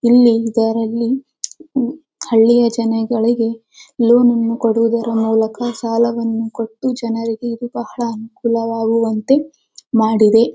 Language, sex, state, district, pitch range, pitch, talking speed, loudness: Kannada, female, Karnataka, Bellary, 225-240 Hz, 230 Hz, 100 wpm, -16 LUFS